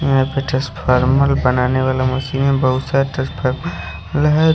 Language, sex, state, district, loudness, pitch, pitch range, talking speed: Hindi, male, Odisha, Khordha, -17 LUFS, 135 Hz, 130-140 Hz, 145 wpm